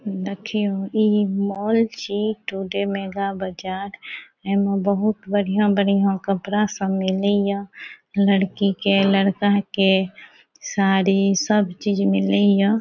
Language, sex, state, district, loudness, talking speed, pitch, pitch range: Maithili, female, Bihar, Saharsa, -21 LUFS, 100 wpm, 200 Hz, 195-205 Hz